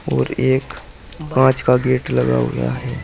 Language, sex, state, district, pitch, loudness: Hindi, male, Uttar Pradesh, Saharanpur, 95 Hz, -17 LUFS